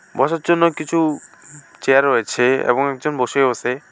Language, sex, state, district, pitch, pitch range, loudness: Bengali, male, West Bengal, Alipurduar, 140 Hz, 130-155 Hz, -18 LUFS